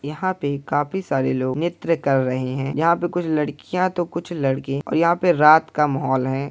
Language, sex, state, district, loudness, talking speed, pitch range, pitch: Hindi, male, Bihar, Purnia, -21 LUFS, 205 wpm, 135-170 Hz, 150 Hz